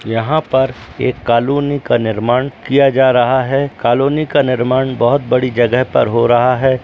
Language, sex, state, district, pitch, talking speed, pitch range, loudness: Hindi, male, Bihar, Gaya, 130 Hz, 185 wpm, 120-135 Hz, -14 LUFS